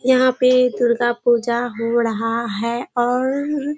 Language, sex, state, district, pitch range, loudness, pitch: Hindi, female, Bihar, Kishanganj, 235-255 Hz, -19 LUFS, 240 Hz